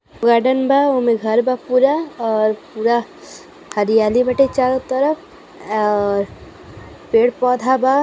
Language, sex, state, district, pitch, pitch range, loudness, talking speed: Hindi, female, Uttar Pradesh, Gorakhpur, 250 Hz, 220-265 Hz, -17 LUFS, 120 wpm